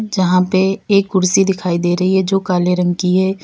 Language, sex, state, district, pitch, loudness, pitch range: Hindi, female, Uttar Pradesh, Lalitpur, 185 Hz, -15 LUFS, 180-195 Hz